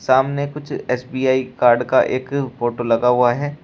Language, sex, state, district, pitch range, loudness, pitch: Hindi, male, Uttar Pradesh, Shamli, 125-140 Hz, -18 LUFS, 130 Hz